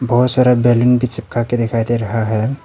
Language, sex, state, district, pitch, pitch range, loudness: Hindi, male, Arunachal Pradesh, Papum Pare, 120 Hz, 115-125 Hz, -15 LUFS